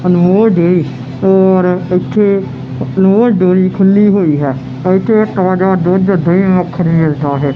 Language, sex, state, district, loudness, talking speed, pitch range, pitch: Punjabi, male, Punjab, Kapurthala, -11 LUFS, 105 wpm, 170-195 Hz, 185 Hz